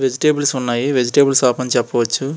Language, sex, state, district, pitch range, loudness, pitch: Telugu, male, Andhra Pradesh, Srikakulam, 125-140 Hz, -16 LUFS, 130 Hz